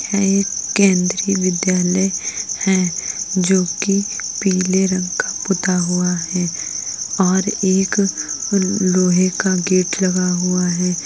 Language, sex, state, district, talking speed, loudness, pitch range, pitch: Hindi, female, Uttar Pradesh, Etah, 115 wpm, -17 LUFS, 180-195 Hz, 185 Hz